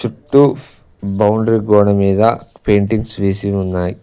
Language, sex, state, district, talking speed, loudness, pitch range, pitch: Telugu, male, Telangana, Mahabubabad, 105 wpm, -14 LUFS, 100-115 Hz, 105 Hz